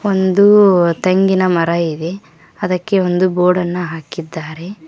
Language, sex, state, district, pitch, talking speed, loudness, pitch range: Kannada, female, Karnataka, Koppal, 180 Hz, 100 wpm, -14 LUFS, 170-190 Hz